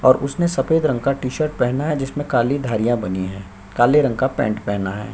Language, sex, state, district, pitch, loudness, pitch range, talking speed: Hindi, male, Chhattisgarh, Sukma, 130 Hz, -20 LUFS, 105-140 Hz, 235 wpm